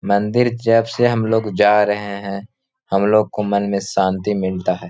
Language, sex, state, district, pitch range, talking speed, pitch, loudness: Hindi, male, Bihar, Gaya, 100-110 Hz, 195 wpm, 105 Hz, -18 LUFS